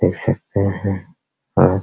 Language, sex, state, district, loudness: Hindi, male, Bihar, Araria, -20 LUFS